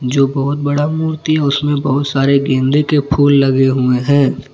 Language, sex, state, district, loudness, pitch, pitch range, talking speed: Hindi, male, Jharkhand, Palamu, -14 LUFS, 140 Hz, 135-145 Hz, 185 wpm